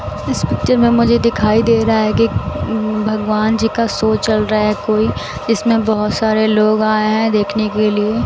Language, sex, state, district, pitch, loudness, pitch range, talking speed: Hindi, female, Bihar, West Champaran, 215 Hz, -15 LUFS, 210-225 Hz, 190 wpm